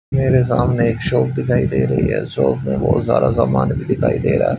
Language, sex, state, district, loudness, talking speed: Hindi, male, Haryana, Charkhi Dadri, -17 LUFS, 220 wpm